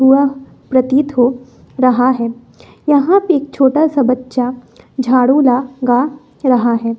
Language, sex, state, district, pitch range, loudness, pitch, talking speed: Hindi, female, Bihar, West Champaran, 250-280 Hz, -14 LUFS, 255 Hz, 130 wpm